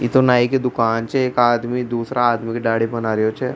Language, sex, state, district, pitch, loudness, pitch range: Rajasthani, male, Rajasthan, Churu, 120 Hz, -18 LUFS, 115-125 Hz